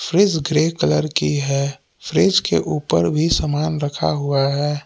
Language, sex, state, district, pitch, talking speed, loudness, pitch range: Hindi, male, Jharkhand, Palamu, 145 Hz, 160 wpm, -19 LUFS, 140-155 Hz